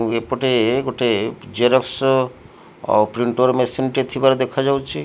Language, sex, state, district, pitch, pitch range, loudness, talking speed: Odia, male, Odisha, Malkangiri, 130 Hz, 120-130 Hz, -18 LUFS, 105 wpm